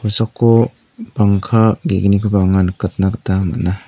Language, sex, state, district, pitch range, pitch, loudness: Garo, male, Meghalaya, North Garo Hills, 95-115 Hz, 100 Hz, -15 LUFS